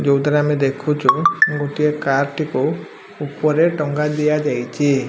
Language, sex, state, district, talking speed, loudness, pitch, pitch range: Odia, male, Odisha, Malkangiri, 95 wpm, -18 LUFS, 150 Hz, 140-150 Hz